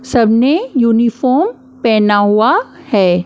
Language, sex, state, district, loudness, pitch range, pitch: Hindi, female, Maharashtra, Mumbai Suburban, -13 LUFS, 210-260 Hz, 235 Hz